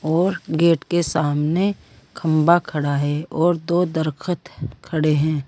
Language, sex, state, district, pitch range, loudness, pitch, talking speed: Hindi, female, Uttar Pradesh, Saharanpur, 155-175 Hz, -20 LUFS, 160 Hz, 130 wpm